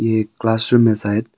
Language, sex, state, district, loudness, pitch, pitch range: Hindi, male, Arunachal Pradesh, Longding, -16 LUFS, 110 Hz, 110-115 Hz